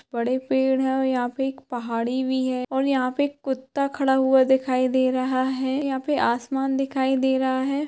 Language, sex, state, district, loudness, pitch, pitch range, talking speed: Hindi, female, Jharkhand, Sahebganj, -23 LUFS, 265 Hz, 255-270 Hz, 215 wpm